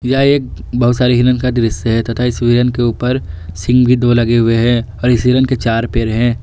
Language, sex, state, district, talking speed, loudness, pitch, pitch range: Hindi, male, Jharkhand, Garhwa, 240 wpm, -13 LUFS, 120 Hz, 115-125 Hz